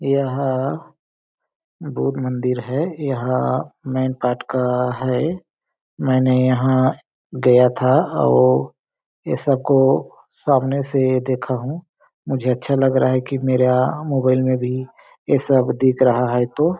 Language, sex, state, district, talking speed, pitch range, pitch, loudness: Hindi, male, Chhattisgarh, Balrampur, 130 wpm, 125-135 Hz, 130 Hz, -19 LUFS